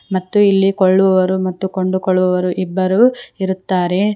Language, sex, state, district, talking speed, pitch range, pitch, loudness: Kannada, female, Karnataka, Koppal, 100 wpm, 185-195 Hz, 190 Hz, -15 LUFS